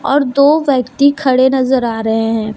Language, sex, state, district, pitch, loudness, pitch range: Hindi, female, Jharkhand, Deoghar, 260 Hz, -13 LUFS, 230-280 Hz